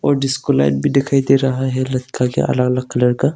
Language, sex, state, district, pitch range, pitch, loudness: Hindi, male, Arunachal Pradesh, Longding, 125-135 Hz, 130 Hz, -17 LUFS